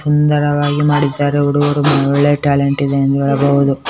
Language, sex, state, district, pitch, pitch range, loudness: Kannada, male, Karnataka, Bellary, 145 Hz, 140-145 Hz, -14 LUFS